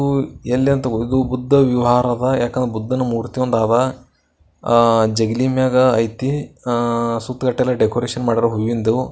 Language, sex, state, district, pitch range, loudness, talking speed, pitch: Kannada, male, Karnataka, Bijapur, 115-130 Hz, -18 LUFS, 105 wpm, 125 Hz